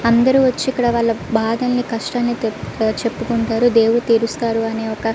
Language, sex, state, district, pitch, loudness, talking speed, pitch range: Telugu, female, Andhra Pradesh, Visakhapatnam, 230 Hz, -18 LUFS, 140 wpm, 225-240 Hz